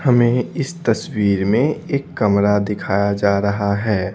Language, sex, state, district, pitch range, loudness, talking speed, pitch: Hindi, male, Bihar, Patna, 100-125 Hz, -18 LUFS, 145 wpm, 105 Hz